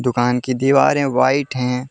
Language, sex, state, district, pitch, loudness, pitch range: Hindi, male, Jharkhand, Deoghar, 130 Hz, -17 LUFS, 125-135 Hz